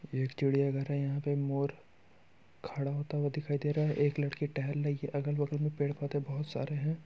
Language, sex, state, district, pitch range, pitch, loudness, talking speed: Hindi, male, Bihar, Muzaffarpur, 140-145 Hz, 145 Hz, -34 LUFS, 240 wpm